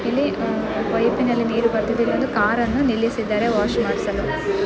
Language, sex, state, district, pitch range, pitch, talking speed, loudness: Kannada, female, Karnataka, Dakshina Kannada, 225-240 Hz, 230 Hz, 140 wpm, -20 LUFS